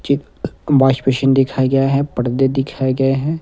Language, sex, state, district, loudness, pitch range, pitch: Hindi, male, Himachal Pradesh, Shimla, -16 LUFS, 135-140 Hz, 135 Hz